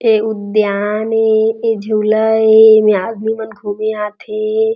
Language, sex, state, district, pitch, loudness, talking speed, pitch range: Chhattisgarhi, female, Chhattisgarh, Jashpur, 220 Hz, -14 LUFS, 140 wpm, 215-220 Hz